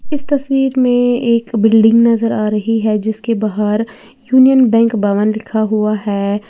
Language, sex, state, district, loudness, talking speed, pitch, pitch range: Hindi, female, Uttar Pradesh, Lalitpur, -13 LUFS, 155 wpm, 225 Hz, 215-245 Hz